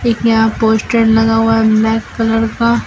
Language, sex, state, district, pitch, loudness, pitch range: Hindi, female, Jharkhand, Deoghar, 225 Hz, -12 LUFS, 225-230 Hz